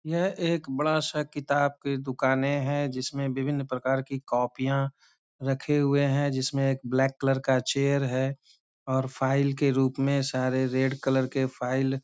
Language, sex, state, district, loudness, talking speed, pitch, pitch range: Hindi, male, Bihar, Bhagalpur, -27 LUFS, 170 wpm, 135 Hz, 130-140 Hz